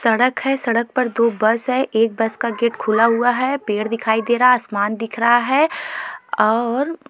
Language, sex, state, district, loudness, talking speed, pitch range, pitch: Hindi, female, Goa, North and South Goa, -18 LUFS, 195 wpm, 225-255 Hz, 235 Hz